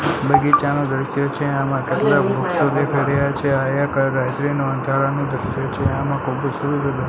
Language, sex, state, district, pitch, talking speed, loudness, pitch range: Gujarati, male, Gujarat, Gandhinagar, 140 Hz, 135 wpm, -19 LUFS, 135-145 Hz